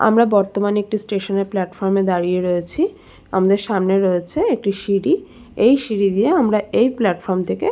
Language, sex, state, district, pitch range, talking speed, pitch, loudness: Bengali, female, West Bengal, Jalpaiguri, 190-220 Hz, 170 wpm, 200 Hz, -18 LUFS